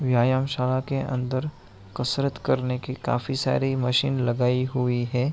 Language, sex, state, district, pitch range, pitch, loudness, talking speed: Hindi, male, Bihar, Araria, 125-135 Hz, 125 Hz, -25 LUFS, 145 wpm